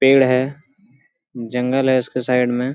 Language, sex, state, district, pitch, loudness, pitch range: Hindi, male, Jharkhand, Sahebganj, 130 Hz, -18 LUFS, 125-135 Hz